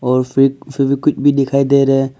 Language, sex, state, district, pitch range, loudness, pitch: Hindi, male, Arunachal Pradesh, Papum Pare, 135-140 Hz, -14 LUFS, 135 Hz